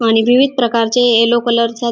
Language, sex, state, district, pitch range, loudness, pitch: Marathi, female, Maharashtra, Dhule, 230-240 Hz, -13 LUFS, 235 Hz